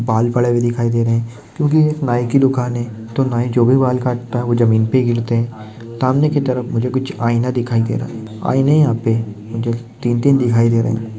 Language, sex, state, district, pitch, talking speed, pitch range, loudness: Hindi, male, Maharashtra, Sindhudurg, 120 Hz, 220 wpm, 115-130 Hz, -17 LUFS